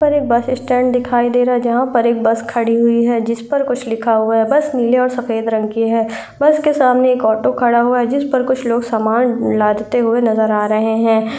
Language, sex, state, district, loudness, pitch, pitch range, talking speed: Hindi, female, Uttar Pradesh, Gorakhpur, -15 LUFS, 235 Hz, 225-250 Hz, 250 wpm